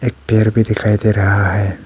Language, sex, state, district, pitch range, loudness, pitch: Hindi, male, Arunachal Pradesh, Papum Pare, 100-110 Hz, -14 LUFS, 105 Hz